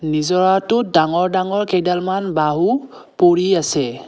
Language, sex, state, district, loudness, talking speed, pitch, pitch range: Assamese, male, Assam, Kamrup Metropolitan, -17 LUFS, 105 wpm, 180 Hz, 160-190 Hz